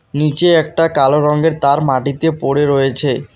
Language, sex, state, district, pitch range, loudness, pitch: Bengali, male, West Bengal, Alipurduar, 135-155 Hz, -14 LUFS, 145 Hz